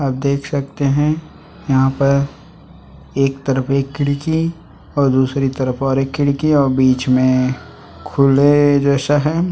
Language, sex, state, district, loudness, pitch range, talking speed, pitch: Hindi, male, Chhattisgarh, Sukma, -16 LUFS, 135-145 Hz, 145 wpm, 140 Hz